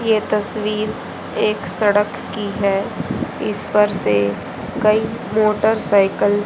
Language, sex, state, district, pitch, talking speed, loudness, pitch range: Hindi, female, Haryana, Jhajjar, 210 Hz, 110 wpm, -18 LUFS, 200-215 Hz